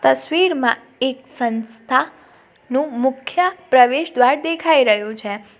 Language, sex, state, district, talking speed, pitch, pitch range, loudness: Gujarati, female, Gujarat, Valsad, 105 wpm, 260 Hz, 225-305 Hz, -18 LUFS